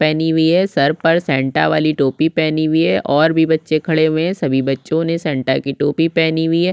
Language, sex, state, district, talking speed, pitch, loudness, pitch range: Hindi, female, Chhattisgarh, Sukma, 230 wpm, 155 Hz, -16 LUFS, 140-165 Hz